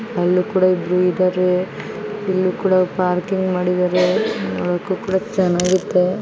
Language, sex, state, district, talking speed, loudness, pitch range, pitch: Kannada, female, Karnataka, Belgaum, 115 wpm, -18 LUFS, 180-190 Hz, 185 Hz